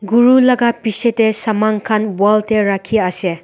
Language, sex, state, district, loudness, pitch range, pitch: Nagamese, female, Nagaland, Dimapur, -14 LUFS, 205-230 Hz, 215 Hz